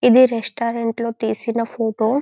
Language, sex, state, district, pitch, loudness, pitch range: Telugu, female, Telangana, Karimnagar, 230 Hz, -20 LUFS, 225-235 Hz